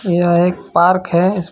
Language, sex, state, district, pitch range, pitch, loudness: Hindi, male, Jharkhand, Ranchi, 175-185 Hz, 180 Hz, -14 LUFS